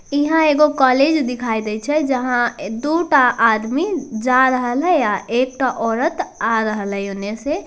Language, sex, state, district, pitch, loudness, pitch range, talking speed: Hindi, female, Bihar, Darbhanga, 255 Hz, -17 LUFS, 225-300 Hz, 180 wpm